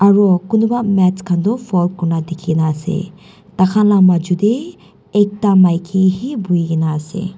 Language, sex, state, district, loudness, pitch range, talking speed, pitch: Nagamese, female, Nagaland, Dimapur, -15 LUFS, 175-205 Hz, 145 wpm, 185 Hz